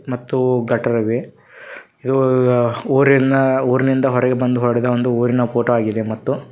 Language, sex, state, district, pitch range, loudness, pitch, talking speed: Kannada, male, Karnataka, Koppal, 120-130 Hz, -17 LUFS, 125 Hz, 130 wpm